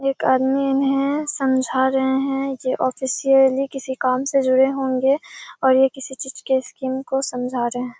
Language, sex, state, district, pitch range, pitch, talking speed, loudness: Hindi, female, Bihar, Kishanganj, 260-275 Hz, 265 Hz, 175 wpm, -20 LUFS